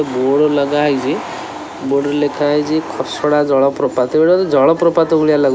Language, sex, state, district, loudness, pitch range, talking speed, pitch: Odia, male, Odisha, Khordha, -14 LUFS, 140-155 Hz, 185 wpm, 145 Hz